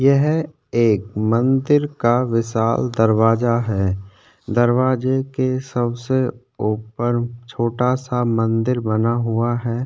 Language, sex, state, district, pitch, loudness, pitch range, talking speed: Hindi, male, Chhattisgarh, Korba, 120 Hz, -19 LUFS, 115-130 Hz, 105 wpm